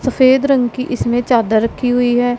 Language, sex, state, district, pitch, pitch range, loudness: Hindi, female, Punjab, Pathankot, 245 Hz, 240-255 Hz, -14 LUFS